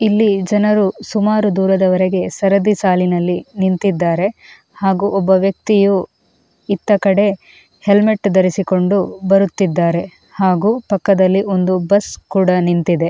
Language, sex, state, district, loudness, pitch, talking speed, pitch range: Kannada, female, Karnataka, Mysore, -15 LUFS, 195 Hz, 95 wpm, 185-200 Hz